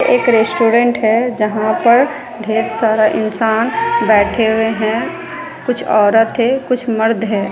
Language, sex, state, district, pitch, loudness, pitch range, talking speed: Hindi, female, Bihar, Kishanganj, 225 Hz, -14 LUFS, 220-245 Hz, 135 wpm